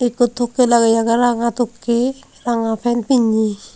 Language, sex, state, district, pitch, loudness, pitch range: Chakma, female, Tripura, Unakoti, 235 Hz, -17 LUFS, 230-245 Hz